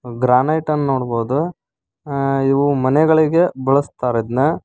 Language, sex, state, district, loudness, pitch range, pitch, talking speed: Kannada, male, Karnataka, Koppal, -17 LUFS, 130-155 Hz, 140 Hz, 90 wpm